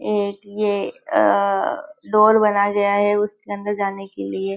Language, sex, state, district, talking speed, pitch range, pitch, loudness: Hindi, female, Maharashtra, Nagpur, 145 wpm, 200-210 Hz, 205 Hz, -19 LUFS